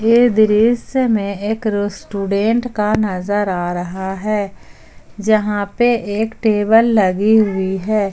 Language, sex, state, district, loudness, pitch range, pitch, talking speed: Hindi, female, Jharkhand, Ranchi, -16 LUFS, 200-220 Hz, 210 Hz, 125 wpm